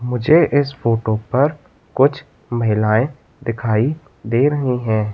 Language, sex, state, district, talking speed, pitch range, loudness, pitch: Hindi, male, Madhya Pradesh, Katni, 115 wpm, 110-140 Hz, -18 LUFS, 125 Hz